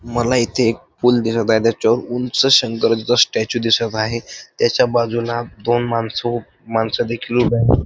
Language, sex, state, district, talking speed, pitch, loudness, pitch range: Marathi, male, Maharashtra, Dhule, 170 wpm, 120 Hz, -17 LUFS, 115-120 Hz